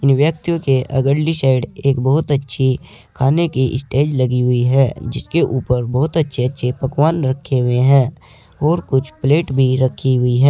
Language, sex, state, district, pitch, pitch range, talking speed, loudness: Hindi, male, Uttar Pradesh, Saharanpur, 135 Hz, 130-145 Hz, 165 wpm, -16 LUFS